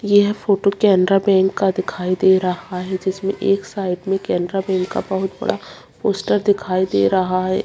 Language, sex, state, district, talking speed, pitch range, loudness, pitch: Hindi, female, Bihar, Purnia, 180 wpm, 185-195 Hz, -18 LUFS, 190 Hz